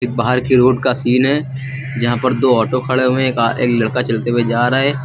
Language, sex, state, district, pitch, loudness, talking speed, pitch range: Hindi, male, Uttar Pradesh, Lucknow, 125 Hz, -15 LUFS, 240 wpm, 120-130 Hz